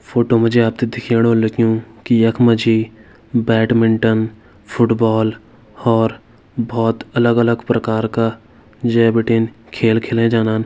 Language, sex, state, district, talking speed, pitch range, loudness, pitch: Hindi, male, Uttarakhand, Tehri Garhwal, 110 wpm, 110-115 Hz, -16 LUFS, 115 Hz